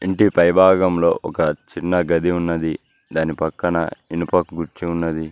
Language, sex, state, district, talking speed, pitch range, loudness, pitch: Telugu, male, Telangana, Mahabubabad, 135 wpm, 80-90 Hz, -19 LUFS, 85 Hz